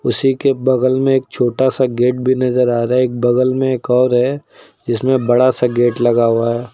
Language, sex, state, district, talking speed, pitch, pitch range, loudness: Hindi, male, Uttar Pradesh, Lucknow, 230 wpm, 125 Hz, 120-130 Hz, -15 LUFS